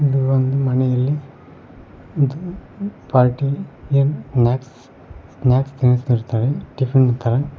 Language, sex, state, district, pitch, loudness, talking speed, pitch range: Kannada, male, Karnataka, Koppal, 130 Hz, -19 LUFS, 95 wpm, 125-140 Hz